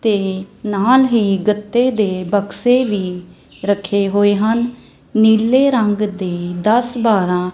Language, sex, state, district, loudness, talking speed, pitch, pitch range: Punjabi, female, Punjab, Kapurthala, -16 LUFS, 120 wpm, 210 Hz, 195-230 Hz